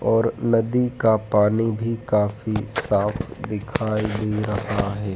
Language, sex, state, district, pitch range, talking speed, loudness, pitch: Hindi, male, Madhya Pradesh, Dhar, 105-115 Hz, 130 wpm, -22 LUFS, 105 Hz